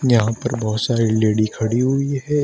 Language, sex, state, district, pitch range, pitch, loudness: Hindi, male, Uttar Pradesh, Shamli, 110-130 Hz, 115 Hz, -19 LUFS